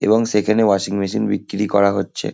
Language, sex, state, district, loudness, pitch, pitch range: Bengali, male, West Bengal, Kolkata, -18 LUFS, 100 Hz, 100-105 Hz